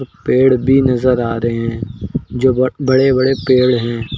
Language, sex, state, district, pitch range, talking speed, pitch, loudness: Hindi, male, Uttar Pradesh, Lucknow, 115-130 Hz, 160 wpm, 125 Hz, -14 LUFS